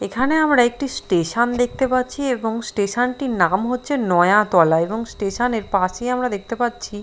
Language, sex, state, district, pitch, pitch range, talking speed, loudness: Bengali, female, Bihar, Katihar, 235 Hz, 200-250 Hz, 155 wpm, -19 LUFS